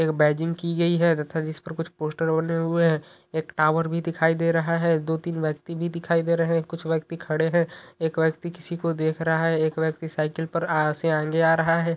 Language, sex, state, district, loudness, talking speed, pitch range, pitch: Hindi, male, Uttar Pradesh, Ghazipur, -24 LUFS, 250 wpm, 160-170 Hz, 165 Hz